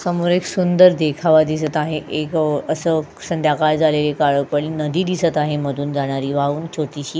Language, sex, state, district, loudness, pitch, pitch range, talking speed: Marathi, female, Goa, North and South Goa, -18 LUFS, 155 Hz, 150-165 Hz, 165 wpm